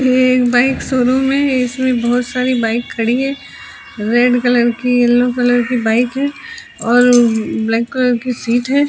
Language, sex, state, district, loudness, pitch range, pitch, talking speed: Hindi, female, Odisha, Sambalpur, -14 LUFS, 240-255 Hz, 245 Hz, 170 wpm